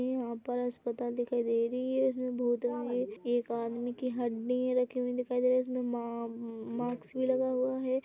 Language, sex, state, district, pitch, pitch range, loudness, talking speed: Hindi, female, Chhattisgarh, Korba, 245 Hz, 240-255 Hz, -33 LUFS, 200 wpm